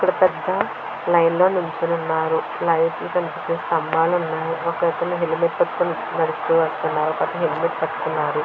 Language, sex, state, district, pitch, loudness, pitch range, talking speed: Telugu, female, Andhra Pradesh, Visakhapatnam, 165 Hz, -21 LUFS, 165-170 Hz, 120 wpm